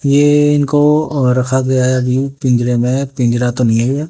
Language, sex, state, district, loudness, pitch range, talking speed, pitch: Hindi, male, Haryana, Jhajjar, -13 LUFS, 125-145 Hz, 205 wpm, 130 Hz